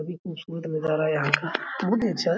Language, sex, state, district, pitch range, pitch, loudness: Hindi, male, Bihar, Araria, 155-175 Hz, 165 Hz, -26 LUFS